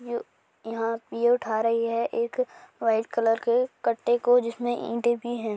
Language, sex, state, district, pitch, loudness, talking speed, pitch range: Hindi, female, Rajasthan, Churu, 235 Hz, -26 LUFS, 160 wpm, 230-240 Hz